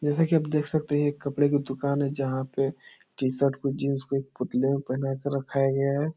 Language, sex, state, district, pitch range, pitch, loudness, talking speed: Hindi, male, Bihar, Jahanabad, 135-145 Hz, 140 Hz, -27 LUFS, 255 wpm